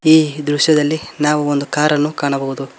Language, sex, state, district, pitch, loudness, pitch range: Kannada, male, Karnataka, Koppal, 150 Hz, -16 LUFS, 145-150 Hz